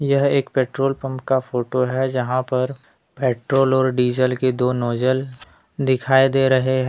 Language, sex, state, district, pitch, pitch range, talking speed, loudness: Hindi, male, Jharkhand, Deoghar, 130 Hz, 125-135 Hz, 165 wpm, -20 LUFS